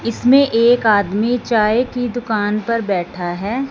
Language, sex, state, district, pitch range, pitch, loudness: Hindi, female, Punjab, Fazilka, 205-245 Hz, 230 Hz, -16 LUFS